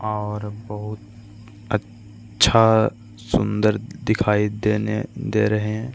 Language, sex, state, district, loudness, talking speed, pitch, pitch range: Hindi, male, Bihar, Gaya, -21 LUFS, 100 wpm, 110 Hz, 105-110 Hz